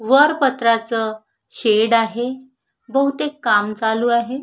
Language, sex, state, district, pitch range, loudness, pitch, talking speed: Marathi, female, Maharashtra, Sindhudurg, 225-265 Hz, -18 LUFS, 235 Hz, 110 wpm